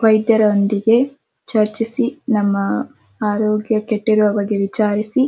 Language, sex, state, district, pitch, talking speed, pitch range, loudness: Kannada, female, Karnataka, Dharwad, 215 Hz, 80 wpm, 210-225 Hz, -17 LUFS